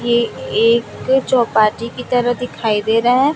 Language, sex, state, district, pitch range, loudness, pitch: Hindi, female, Chhattisgarh, Raipur, 225-250 Hz, -16 LUFS, 235 Hz